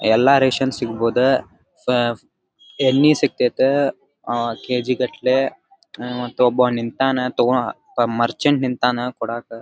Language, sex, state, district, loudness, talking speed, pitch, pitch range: Kannada, male, Karnataka, Dharwad, -19 LUFS, 110 wpm, 125 Hz, 120-135 Hz